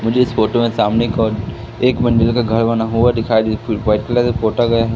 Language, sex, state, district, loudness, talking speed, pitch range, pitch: Hindi, male, Madhya Pradesh, Katni, -16 LUFS, 240 wpm, 110-120 Hz, 115 Hz